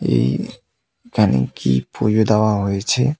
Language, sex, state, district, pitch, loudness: Bengali, male, West Bengal, Cooch Behar, 100 Hz, -18 LUFS